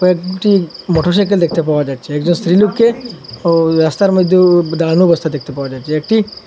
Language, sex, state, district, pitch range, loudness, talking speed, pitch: Bengali, male, Assam, Hailakandi, 160-190 Hz, -13 LUFS, 165 wpm, 170 Hz